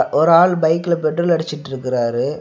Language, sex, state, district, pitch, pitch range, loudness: Tamil, male, Tamil Nadu, Kanyakumari, 160 Hz, 135-170 Hz, -17 LUFS